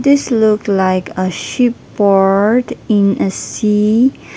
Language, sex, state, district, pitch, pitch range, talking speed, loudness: English, female, Nagaland, Dimapur, 210 Hz, 195-245 Hz, 125 wpm, -14 LUFS